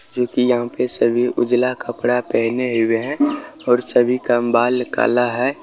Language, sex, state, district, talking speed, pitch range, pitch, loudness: Hindi, male, Bihar, Bhagalpur, 170 wpm, 120-125 Hz, 125 Hz, -17 LUFS